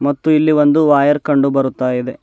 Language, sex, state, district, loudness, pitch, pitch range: Kannada, male, Karnataka, Bidar, -14 LUFS, 145 Hz, 135-150 Hz